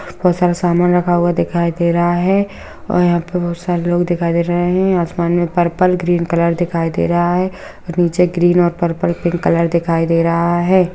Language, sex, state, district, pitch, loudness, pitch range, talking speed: Hindi, female, Bihar, Araria, 175 Hz, -15 LUFS, 170-180 Hz, 220 wpm